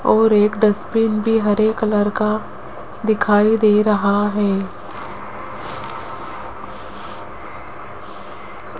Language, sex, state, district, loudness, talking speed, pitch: Hindi, female, Rajasthan, Jaipur, -17 LUFS, 75 wpm, 205 Hz